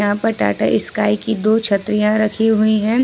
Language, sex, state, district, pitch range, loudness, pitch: Hindi, female, Jharkhand, Ranchi, 210-220 Hz, -17 LUFS, 215 Hz